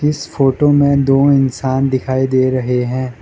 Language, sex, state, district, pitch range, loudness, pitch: Hindi, male, Arunachal Pradesh, Lower Dibang Valley, 130-140 Hz, -14 LUFS, 130 Hz